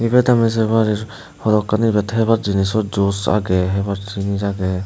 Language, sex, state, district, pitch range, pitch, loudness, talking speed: Chakma, male, Tripura, Dhalai, 100-110 Hz, 105 Hz, -18 LUFS, 175 wpm